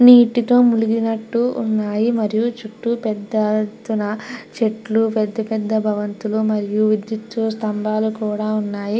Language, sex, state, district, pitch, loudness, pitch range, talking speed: Telugu, female, Andhra Pradesh, Krishna, 220 Hz, -19 LUFS, 215-225 Hz, 105 wpm